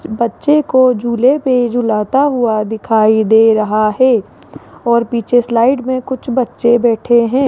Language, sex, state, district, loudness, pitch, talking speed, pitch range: Hindi, female, Rajasthan, Jaipur, -13 LUFS, 235 Hz, 145 wpm, 225-255 Hz